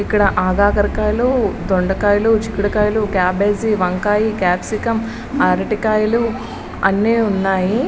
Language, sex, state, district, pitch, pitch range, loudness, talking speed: Telugu, female, Andhra Pradesh, Srikakulam, 210 Hz, 195-220 Hz, -17 LUFS, 75 wpm